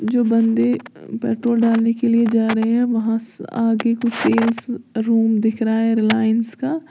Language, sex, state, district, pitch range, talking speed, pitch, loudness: Hindi, female, Uttar Pradesh, Lalitpur, 225-235 Hz, 175 wpm, 230 Hz, -18 LUFS